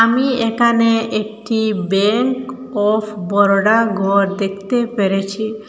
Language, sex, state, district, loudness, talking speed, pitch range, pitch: Bengali, female, Assam, Hailakandi, -16 LUFS, 95 wpm, 200-230 Hz, 215 Hz